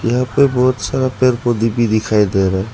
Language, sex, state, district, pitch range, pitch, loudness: Hindi, male, Arunachal Pradesh, Lower Dibang Valley, 110-130 Hz, 120 Hz, -15 LUFS